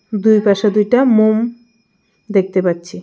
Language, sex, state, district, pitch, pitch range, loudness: Bengali, female, Tripura, West Tripura, 215 Hz, 195-225 Hz, -14 LUFS